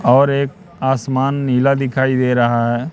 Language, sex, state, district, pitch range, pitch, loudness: Hindi, male, Madhya Pradesh, Katni, 125-140 Hz, 130 Hz, -16 LUFS